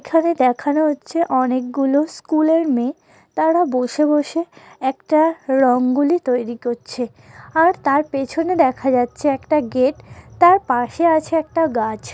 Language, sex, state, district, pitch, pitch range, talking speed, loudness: Bengali, female, West Bengal, Kolkata, 290 Hz, 255-325 Hz, 145 wpm, -18 LUFS